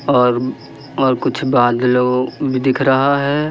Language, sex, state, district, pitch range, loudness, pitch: Hindi, male, Madhya Pradesh, Katni, 125-140 Hz, -16 LUFS, 130 Hz